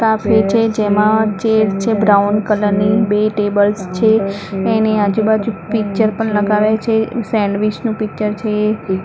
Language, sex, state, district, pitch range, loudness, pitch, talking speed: Gujarati, female, Maharashtra, Mumbai Suburban, 205-220 Hz, -15 LUFS, 215 Hz, 125 wpm